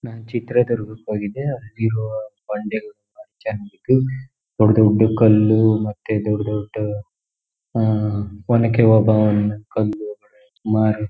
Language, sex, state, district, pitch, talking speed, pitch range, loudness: Kannada, male, Karnataka, Shimoga, 110 Hz, 105 wpm, 105-115 Hz, -19 LUFS